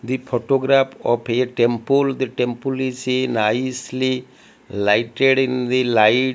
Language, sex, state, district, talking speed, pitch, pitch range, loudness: English, male, Odisha, Malkangiri, 130 wpm, 130 Hz, 120-130 Hz, -19 LUFS